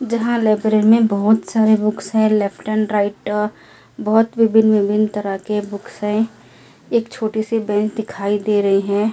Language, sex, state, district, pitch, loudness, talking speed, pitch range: Hindi, female, Delhi, New Delhi, 215 Hz, -17 LUFS, 165 wpm, 205-220 Hz